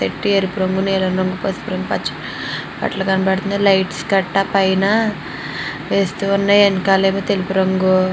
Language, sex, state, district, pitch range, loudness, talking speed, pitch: Telugu, female, Andhra Pradesh, Srikakulam, 190-200 Hz, -17 LUFS, 95 wpm, 195 Hz